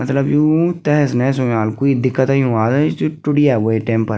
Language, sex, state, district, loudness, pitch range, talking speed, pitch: Garhwali, female, Uttarakhand, Tehri Garhwal, -16 LUFS, 120-145 Hz, 215 wpm, 135 Hz